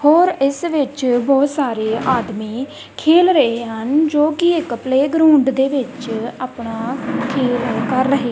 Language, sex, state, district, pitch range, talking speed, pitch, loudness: Punjabi, female, Punjab, Kapurthala, 240-295 Hz, 130 wpm, 265 Hz, -17 LUFS